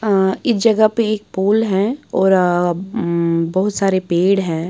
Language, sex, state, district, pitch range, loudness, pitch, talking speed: Hindi, female, Bihar, Patna, 175-215 Hz, -17 LUFS, 190 Hz, 180 wpm